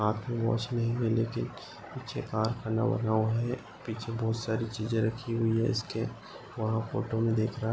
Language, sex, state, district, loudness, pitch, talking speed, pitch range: Marathi, male, Maharashtra, Sindhudurg, -31 LUFS, 115 Hz, 165 wpm, 110-115 Hz